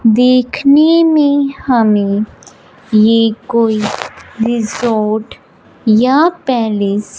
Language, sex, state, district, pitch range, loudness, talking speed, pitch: Hindi, female, Punjab, Fazilka, 215-265 Hz, -12 LUFS, 75 wpm, 230 Hz